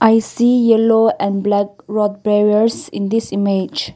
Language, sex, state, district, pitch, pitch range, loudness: English, female, Nagaland, Kohima, 210 Hz, 200-225 Hz, -15 LUFS